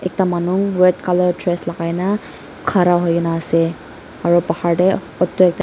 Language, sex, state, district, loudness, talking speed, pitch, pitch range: Nagamese, female, Nagaland, Dimapur, -17 LUFS, 160 wpm, 175 Hz, 170-185 Hz